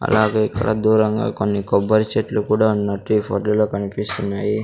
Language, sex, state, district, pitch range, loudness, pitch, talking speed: Telugu, male, Andhra Pradesh, Sri Satya Sai, 100-110 Hz, -19 LUFS, 105 Hz, 155 wpm